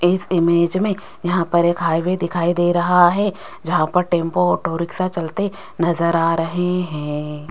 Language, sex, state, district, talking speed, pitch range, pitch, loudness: Hindi, female, Rajasthan, Jaipur, 160 wpm, 170-180 Hz, 175 Hz, -19 LUFS